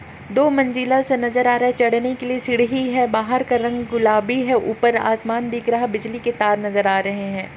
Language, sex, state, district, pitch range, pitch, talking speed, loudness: Hindi, female, Chhattisgarh, Kabirdham, 220-250 Hz, 240 Hz, 230 wpm, -19 LUFS